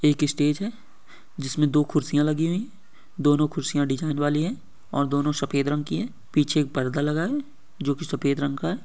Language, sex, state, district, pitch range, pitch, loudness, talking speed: Hindi, male, Uttar Pradesh, Etah, 140-165 Hz, 150 Hz, -25 LUFS, 195 wpm